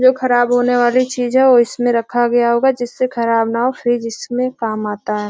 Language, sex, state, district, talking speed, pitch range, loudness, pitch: Hindi, female, Bihar, Gopalganj, 225 wpm, 230-255 Hz, -16 LUFS, 245 Hz